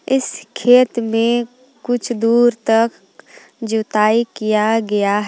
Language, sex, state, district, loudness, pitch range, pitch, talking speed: Hindi, female, Jharkhand, Palamu, -16 LUFS, 220-240 Hz, 230 Hz, 100 wpm